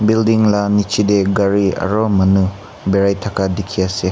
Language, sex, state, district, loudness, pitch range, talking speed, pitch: Nagamese, male, Nagaland, Kohima, -16 LUFS, 95-105 Hz, 145 wpm, 100 Hz